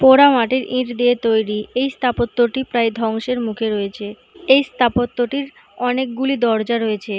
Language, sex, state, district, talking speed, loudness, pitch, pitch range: Bengali, female, West Bengal, Jhargram, 135 wpm, -18 LUFS, 245 Hz, 225-260 Hz